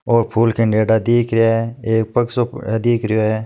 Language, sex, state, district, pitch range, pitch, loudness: Marwari, male, Rajasthan, Nagaur, 110-120 Hz, 115 Hz, -17 LUFS